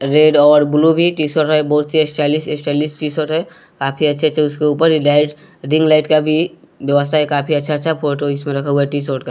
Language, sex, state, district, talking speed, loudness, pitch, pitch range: Hindi, male, Bihar, West Champaran, 210 wpm, -15 LUFS, 150 Hz, 145-155 Hz